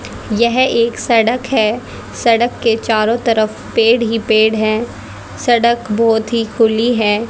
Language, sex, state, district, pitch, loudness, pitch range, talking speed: Hindi, female, Haryana, Rohtak, 230 Hz, -14 LUFS, 220-235 Hz, 140 wpm